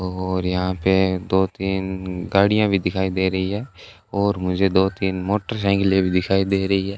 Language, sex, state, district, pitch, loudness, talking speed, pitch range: Hindi, male, Rajasthan, Bikaner, 95 Hz, -21 LUFS, 180 wpm, 95-100 Hz